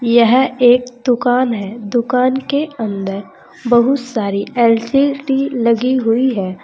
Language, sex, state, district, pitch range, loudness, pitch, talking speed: Hindi, female, Uttar Pradesh, Saharanpur, 225-260 Hz, -15 LUFS, 245 Hz, 115 wpm